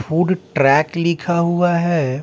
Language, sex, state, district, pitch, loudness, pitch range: Hindi, male, Bihar, Patna, 170 Hz, -17 LUFS, 155-175 Hz